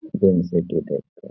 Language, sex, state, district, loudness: Hindi, male, Bihar, Gaya, -22 LUFS